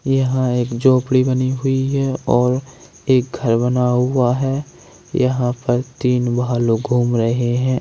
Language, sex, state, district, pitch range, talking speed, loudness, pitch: Hindi, male, Bihar, East Champaran, 120-130 Hz, 145 wpm, -18 LUFS, 125 Hz